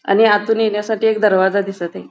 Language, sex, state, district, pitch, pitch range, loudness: Marathi, female, Goa, North and South Goa, 210 Hz, 195-220 Hz, -16 LUFS